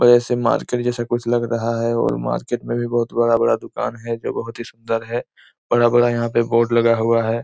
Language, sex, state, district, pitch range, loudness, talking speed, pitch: Hindi, male, Chhattisgarh, Korba, 115-120 Hz, -19 LUFS, 210 wpm, 115 Hz